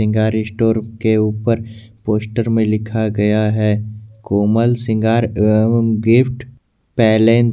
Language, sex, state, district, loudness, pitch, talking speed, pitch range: Hindi, male, Jharkhand, Garhwa, -16 LUFS, 110 Hz, 120 wpm, 110-115 Hz